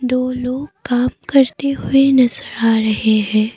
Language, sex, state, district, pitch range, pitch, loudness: Hindi, female, Assam, Kamrup Metropolitan, 225-270 Hz, 250 Hz, -16 LUFS